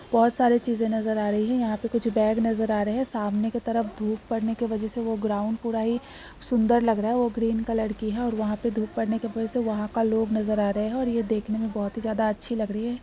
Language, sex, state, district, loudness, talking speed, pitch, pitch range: Hindi, female, Uttar Pradesh, Jalaun, -26 LUFS, 285 wpm, 225 Hz, 215-235 Hz